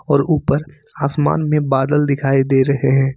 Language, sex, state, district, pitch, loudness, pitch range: Hindi, male, Jharkhand, Ranchi, 140 Hz, -16 LUFS, 135-150 Hz